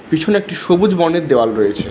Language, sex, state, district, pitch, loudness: Bengali, male, West Bengal, Alipurduar, 170 Hz, -15 LUFS